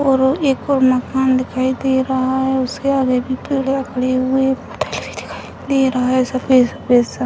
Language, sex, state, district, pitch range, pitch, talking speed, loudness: Hindi, female, Bihar, Sitamarhi, 255-265 Hz, 260 Hz, 125 wpm, -17 LUFS